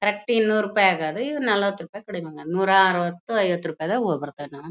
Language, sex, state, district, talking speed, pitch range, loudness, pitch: Kannada, female, Karnataka, Bellary, 205 wpm, 165-210 Hz, -22 LUFS, 190 Hz